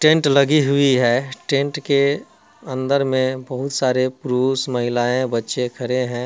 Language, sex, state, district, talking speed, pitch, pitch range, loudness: Hindi, male, Bihar, Muzaffarpur, 155 wpm, 130 Hz, 125-140 Hz, -19 LUFS